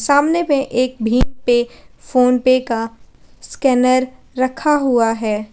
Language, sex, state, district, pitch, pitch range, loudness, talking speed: Hindi, female, Jharkhand, Garhwa, 255 Hz, 240-270 Hz, -16 LUFS, 120 wpm